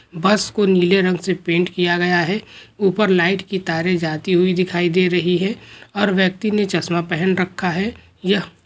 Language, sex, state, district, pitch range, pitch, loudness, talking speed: Hindi, male, West Bengal, Jhargram, 175-195 Hz, 185 Hz, -18 LUFS, 185 wpm